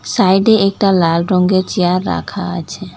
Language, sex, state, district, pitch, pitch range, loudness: Bengali, female, West Bengal, Alipurduar, 185 Hz, 180-195 Hz, -14 LUFS